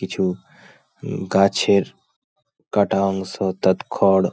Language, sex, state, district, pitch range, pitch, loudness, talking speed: Bengali, male, West Bengal, Paschim Medinipur, 95-100 Hz, 95 Hz, -20 LUFS, 110 wpm